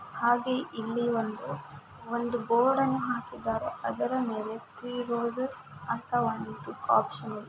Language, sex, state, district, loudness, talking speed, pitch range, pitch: Kannada, female, Karnataka, Mysore, -30 LUFS, 110 wpm, 230-255 Hz, 240 Hz